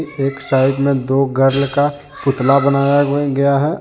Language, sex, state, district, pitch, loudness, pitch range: Hindi, male, Jharkhand, Deoghar, 140 Hz, -15 LUFS, 135-145 Hz